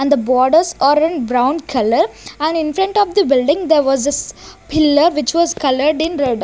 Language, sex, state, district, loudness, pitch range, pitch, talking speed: English, female, Chandigarh, Chandigarh, -15 LUFS, 270-325 Hz, 295 Hz, 195 wpm